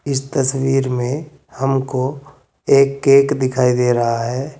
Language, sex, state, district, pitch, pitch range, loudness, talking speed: Hindi, male, Uttar Pradesh, Saharanpur, 135 Hz, 125-140 Hz, -17 LUFS, 130 wpm